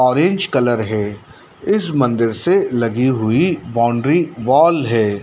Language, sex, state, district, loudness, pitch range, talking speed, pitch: Hindi, male, Madhya Pradesh, Dhar, -16 LUFS, 115-155 Hz, 125 wpm, 120 Hz